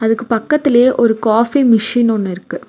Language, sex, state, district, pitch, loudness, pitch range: Tamil, female, Tamil Nadu, Nilgiris, 230 Hz, -13 LUFS, 220-245 Hz